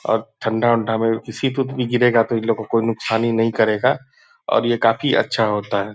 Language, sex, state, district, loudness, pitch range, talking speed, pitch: Hindi, male, Bihar, Purnia, -19 LUFS, 110-125 Hz, 200 wpm, 115 Hz